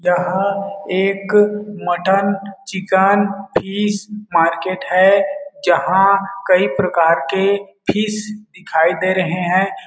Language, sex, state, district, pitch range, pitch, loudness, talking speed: Hindi, male, Chhattisgarh, Balrampur, 185-200 Hz, 195 Hz, -17 LUFS, 95 wpm